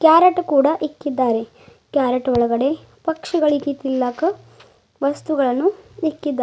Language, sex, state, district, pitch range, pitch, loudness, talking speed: Kannada, female, Karnataka, Bidar, 260-320 Hz, 285 Hz, -19 LUFS, 85 wpm